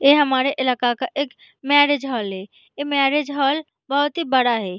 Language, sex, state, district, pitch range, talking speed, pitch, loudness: Hindi, female, Bihar, Araria, 255-290 Hz, 190 wpm, 275 Hz, -20 LUFS